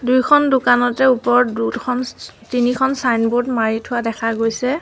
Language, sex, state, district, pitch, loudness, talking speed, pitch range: Assamese, female, Assam, Sonitpur, 245 Hz, -17 LUFS, 150 wpm, 230-255 Hz